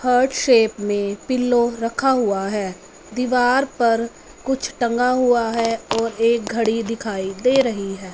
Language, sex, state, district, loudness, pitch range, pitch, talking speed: Hindi, female, Punjab, Fazilka, -20 LUFS, 220-250 Hz, 230 Hz, 145 wpm